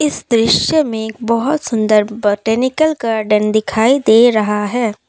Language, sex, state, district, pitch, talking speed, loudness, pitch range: Hindi, female, Assam, Kamrup Metropolitan, 225 Hz, 140 wpm, -14 LUFS, 215-250 Hz